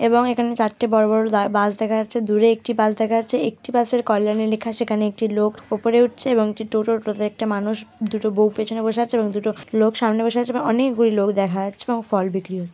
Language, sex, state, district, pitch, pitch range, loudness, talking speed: Bengali, female, West Bengal, Purulia, 220 Hz, 210-230 Hz, -20 LUFS, 230 wpm